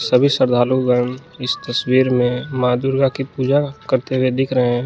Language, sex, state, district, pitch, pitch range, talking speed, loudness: Hindi, male, Jharkhand, Garhwa, 130 Hz, 125-135 Hz, 185 wpm, -18 LUFS